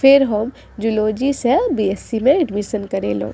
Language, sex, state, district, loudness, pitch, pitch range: Maithili, female, Bihar, Madhepura, -18 LUFS, 225 Hz, 205-265 Hz